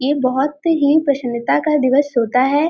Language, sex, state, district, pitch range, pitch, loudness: Hindi, female, Uttar Pradesh, Varanasi, 255-295 Hz, 280 Hz, -16 LUFS